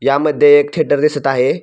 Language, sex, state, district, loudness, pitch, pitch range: Marathi, male, Maharashtra, Pune, -13 LUFS, 145 Hz, 140-150 Hz